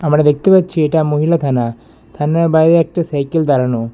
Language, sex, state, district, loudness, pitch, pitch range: Bengali, male, West Bengal, Alipurduar, -14 LUFS, 150 Hz, 135-165 Hz